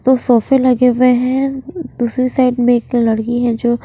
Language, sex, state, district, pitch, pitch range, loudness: Hindi, female, Punjab, Pathankot, 250 Hz, 240-260 Hz, -14 LUFS